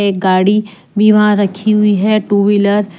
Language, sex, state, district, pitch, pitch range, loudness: Hindi, female, Jharkhand, Deoghar, 205 Hz, 200-210 Hz, -12 LUFS